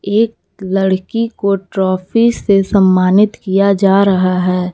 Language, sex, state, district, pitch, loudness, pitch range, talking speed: Hindi, female, Jharkhand, Garhwa, 195 Hz, -13 LUFS, 185-205 Hz, 125 wpm